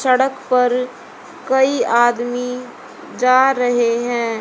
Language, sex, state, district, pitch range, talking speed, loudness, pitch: Hindi, female, Haryana, Charkhi Dadri, 240-255 Hz, 95 wpm, -17 LUFS, 250 Hz